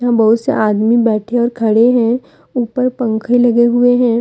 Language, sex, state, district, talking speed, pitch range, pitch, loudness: Hindi, female, Jharkhand, Deoghar, 170 wpm, 225-245 Hz, 235 Hz, -13 LUFS